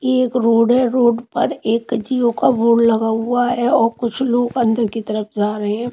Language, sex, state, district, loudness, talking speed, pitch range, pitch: Hindi, female, Maharashtra, Mumbai Suburban, -17 LUFS, 220 wpm, 225-245 Hz, 235 Hz